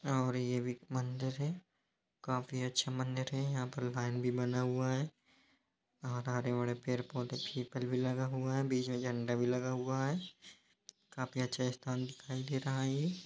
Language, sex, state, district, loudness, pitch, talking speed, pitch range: Hindi, male, Bihar, East Champaran, -37 LUFS, 130 Hz, 180 wpm, 125-130 Hz